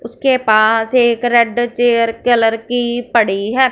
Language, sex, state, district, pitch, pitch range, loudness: Hindi, female, Punjab, Fazilka, 235 Hz, 225-245 Hz, -14 LUFS